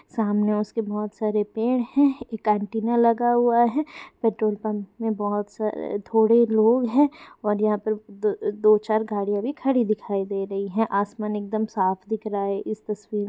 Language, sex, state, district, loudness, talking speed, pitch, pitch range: Hindi, female, Bihar, Jahanabad, -23 LUFS, 55 wpm, 215 Hz, 210-230 Hz